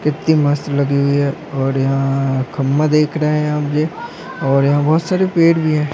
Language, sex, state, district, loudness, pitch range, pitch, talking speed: Hindi, male, Chhattisgarh, Bilaspur, -16 LUFS, 140-155 Hz, 145 Hz, 200 wpm